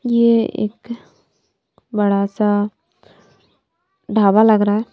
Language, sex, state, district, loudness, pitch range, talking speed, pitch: Hindi, female, Punjab, Kapurthala, -16 LUFS, 205-235 Hz, 95 wpm, 215 Hz